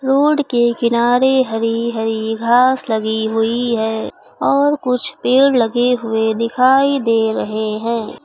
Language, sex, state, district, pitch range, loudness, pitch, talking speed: Hindi, female, Uttar Pradesh, Lucknow, 225-255 Hz, -16 LUFS, 235 Hz, 130 wpm